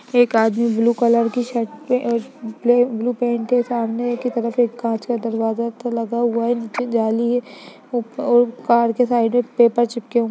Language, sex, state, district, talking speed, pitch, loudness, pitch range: Hindi, female, Bihar, Lakhisarai, 205 wpm, 235 Hz, -19 LUFS, 230-245 Hz